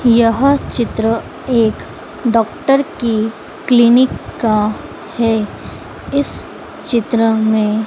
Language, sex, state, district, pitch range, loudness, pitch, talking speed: Hindi, female, Madhya Pradesh, Dhar, 220-255 Hz, -15 LUFS, 230 Hz, 85 wpm